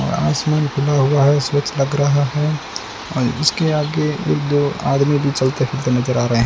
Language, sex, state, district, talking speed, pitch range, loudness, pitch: Hindi, male, Rajasthan, Bikaner, 195 wpm, 135-150 Hz, -18 LUFS, 145 Hz